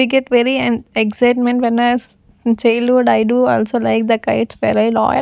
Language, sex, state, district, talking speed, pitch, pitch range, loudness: English, female, Punjab, Fazilka, 175 wpm, 240 Hz, 225-245 Hz, -15 LUFS